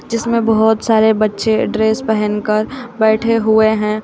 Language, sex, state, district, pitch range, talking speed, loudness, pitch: Hindi, female, Uttar Pradesh, Shamli, 215-225 Hz, 150 wpm, -14 LUFS, 220 Hz